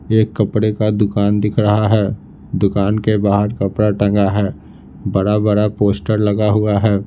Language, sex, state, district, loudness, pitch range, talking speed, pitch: Hindi, male, Bihar, Patna, -16 LUFS, 100-105 Hz, 155 wpm, 105 Hz